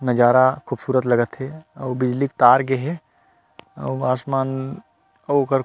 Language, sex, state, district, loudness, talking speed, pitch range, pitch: Chhattisgarhi, male, Chhattisgarh, Rajnandgaon, -20 LUFS, 150 wpm, 125-135 Hz, 130 Hz